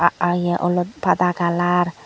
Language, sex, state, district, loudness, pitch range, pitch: Chakma, female, Tripura, Dhalai, -19 LUFS, 175-180 Hz, 175 Hz